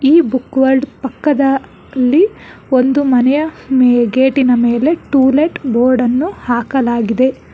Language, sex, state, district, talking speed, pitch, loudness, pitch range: Kannada, female, Karnataka, Bangalore, 120 wpm, 265 Hz, -13 LUFS, 250-280 Hz